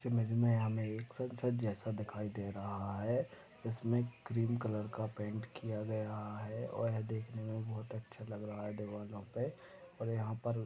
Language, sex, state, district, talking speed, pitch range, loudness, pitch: Hindi, male, Maharashtra, Sindhudurg, 185 wpm, 105-115 Hz, -40 LUFS, 110 Hz